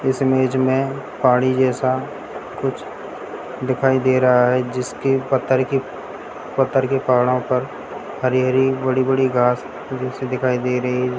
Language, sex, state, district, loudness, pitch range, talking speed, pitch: Hindi, male, Bihar, Sitamarhi, -19 LUFS, 125-130 Hz, 140 wpm, 130 Hz